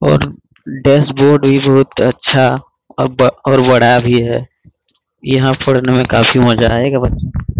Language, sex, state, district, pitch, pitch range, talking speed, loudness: Hindi, male, Bihar, Saran, 130 Hz, 120-135 Hz, 135 wpm, -12 LUFS